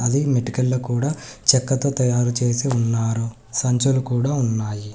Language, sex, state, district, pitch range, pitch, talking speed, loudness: Telugu, male, Telangana, Hyderabad, 115-135 Hz, 125 Hz, 135 wpm, -20 LUFS